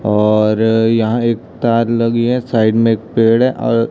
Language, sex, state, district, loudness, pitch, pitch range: Hindi, male, Chhattisgarh, Raipur, -14 LUFS, 115 Hz, 110-115 Hz